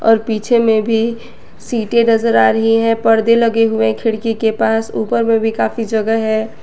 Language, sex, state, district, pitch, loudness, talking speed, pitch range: Hindi, female, Jharkhand, Garhwa, 225 Hz, -14 LUFS, 200 wpm, 220-230 Hz